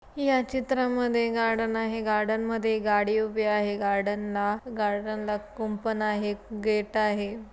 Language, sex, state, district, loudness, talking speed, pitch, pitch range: Marathi, female, Maharashtra, Solapur, -27 LUFS, 110 wpm, 215 Hz, 210-225 Hz